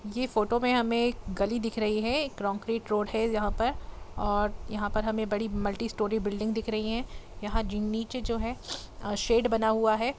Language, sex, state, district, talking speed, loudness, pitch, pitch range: Hindi, female, Jharkhand, Jamtara, 170 wpm, -29 LUFS, 220 Hz, 210-230 Hz